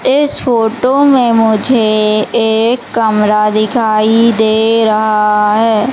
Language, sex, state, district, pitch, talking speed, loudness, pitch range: Hindi, female, Madhya Pradesh, Umaria, 220 Hz, 100 wpm, -11 LUFS, 215-235 Hz